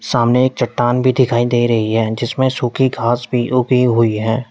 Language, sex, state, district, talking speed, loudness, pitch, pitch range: Hindi, male, Uttar Pradesh, Lalitpur, 200 wpm, -15 LUFS, 120 Hz, 115-125 Hz